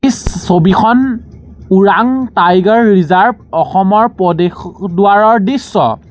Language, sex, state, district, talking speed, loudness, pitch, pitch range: Assamese, male, Assam, Sonitpur, 70 wpm, -10 LUFS, 200 Hz, 185-230 Hz